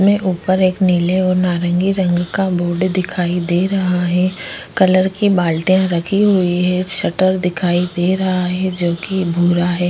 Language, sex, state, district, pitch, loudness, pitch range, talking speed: Hindi, female, Uttar Pradesh, Jyotiba Phule Nagar, 180 Hz, -16 LUFS, 175-185 Hz, 170 wpm